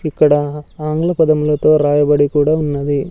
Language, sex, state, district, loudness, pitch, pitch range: Telugu, male, Andhra Pradesh, Sri Satya Sai, -15 LUFS, 150 Hz, 145-155 Hz